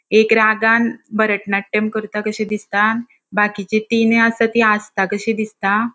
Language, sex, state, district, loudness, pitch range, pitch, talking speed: Konkani, female, Goa, North and South Goa, -17 LUFS, 210-225 Hz, 215 Hz, 130 wpm